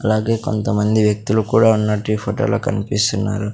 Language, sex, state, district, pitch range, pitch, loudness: Telugu, male, Andhra Pradesh, Sri Satya Sai, 105-110 Hz, 105 Hz, -18 LUFS